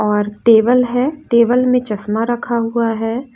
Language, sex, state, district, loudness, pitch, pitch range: Hindi, female, Bihar, West Champaran, -15 LUFS, 235 Hz, 225-245 Hz